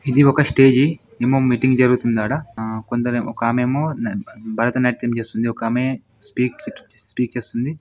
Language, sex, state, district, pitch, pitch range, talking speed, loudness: Telugu, male, Telangana, Nalgonda, 125 Hz, 115-135 Hz, 145 wpm, -19 LUFS